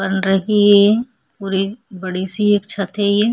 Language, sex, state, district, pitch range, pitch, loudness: Hindi, female, Chhattisgarh, Kabirdham, 190-210 Hz, 200 Hz, -16 LUFS